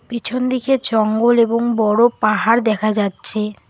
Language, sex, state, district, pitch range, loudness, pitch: Bengali, female, West Bengal, Alipurduar, 215-240 Hz, -16 LUFS, 230 Hz